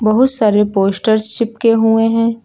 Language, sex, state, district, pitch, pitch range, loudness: Hindi, female, Uttar Pradesh, Lucknow, 225 Hz, 215-230 Hz, -12 LUFS